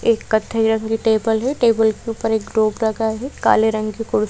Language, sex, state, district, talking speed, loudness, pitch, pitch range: Hindi, female, Madhya Pradesh, Bhopal, 250 wpm, -18 LUFS, 220 Hz, 220-225 Hz